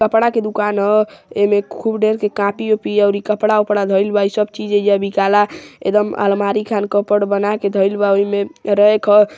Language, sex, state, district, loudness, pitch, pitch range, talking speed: Hindi, male, Uttar Pradesh, Gorakhpur, -16 LUFS, 205 Hz, 200-210 Hz, 215 wpm